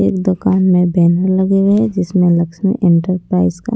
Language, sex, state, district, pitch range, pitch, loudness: Hindi, female, Punjab, Pathankot, 175-195 Hz, 185 Hz, -13 LUFS